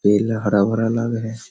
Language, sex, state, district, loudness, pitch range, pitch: Hindi, male, Bihar, Kishanganj, -20 LUFS, 105-115 Hz, 110 Hz